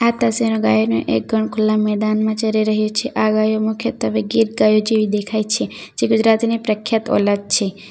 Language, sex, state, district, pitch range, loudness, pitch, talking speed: Gujarati, female, Gujarat, Valsad, 210-225 Hz, -17 LUFS, 215 Hz, 175 wpm